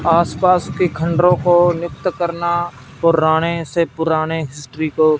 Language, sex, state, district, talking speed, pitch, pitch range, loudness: Hindi, male, Punjab, Fazilka, 125 wpm, 170 Hz, 160-175 Hz, -17 LUFS